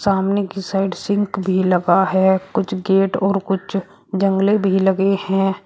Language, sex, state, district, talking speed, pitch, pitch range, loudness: Hindi, female, Uttar Pradesh, Shamli, 160 wpm, 195 Hz, 190-195 Hz, -18 LUFS